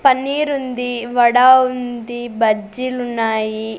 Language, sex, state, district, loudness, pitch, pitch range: Telugu, female, Andhra Pradesh, Sri Satya Sai, -17 LUFS, 245 Hz, 230-255 Hz